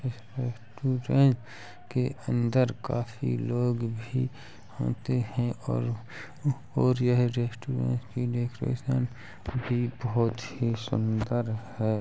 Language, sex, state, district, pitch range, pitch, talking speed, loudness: Hindi, female, Uttar Pradesh, Jalaun, 115-125 Hz, 120 Hz, 90 wpm, -29 LUFS